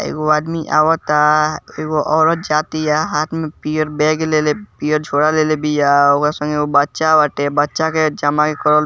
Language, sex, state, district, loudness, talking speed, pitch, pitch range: Bhojpuri, male, Bihar, East Champaran, -16 LUFS, 165 wpm, 155 Hz, 150-155 Hz